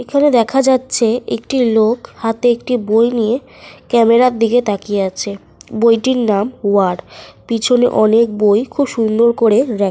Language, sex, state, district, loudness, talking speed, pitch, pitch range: Bengali, female, Jharkhand, Sahebganj, -14 LUFS, 105 wpm, 230 Hz, 215-245 Hz